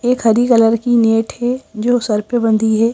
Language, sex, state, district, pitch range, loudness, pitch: Hindi, female, Madhya Pradesh, Bhopal, 225-245 Hz, -15 LUFS, 230 Hz